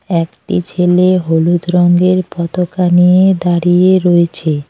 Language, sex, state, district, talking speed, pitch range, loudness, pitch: Bengali, female, West Bengal, Cooch Behar, 100 wpm, 170-180 Hz, -12 LUFS, 175 Hz